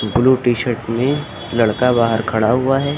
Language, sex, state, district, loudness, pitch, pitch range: Hindi, female, Uttar Pradesh, Lucknow, -17 LUFS, 120 Hz, 115-130 Hz